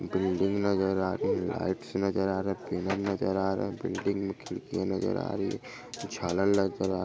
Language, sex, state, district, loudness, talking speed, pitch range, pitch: Hindi, male, Chhattisgarh, Bastar, -30 LUFS, 205 wpm, 95-100 Hz, 95 Hz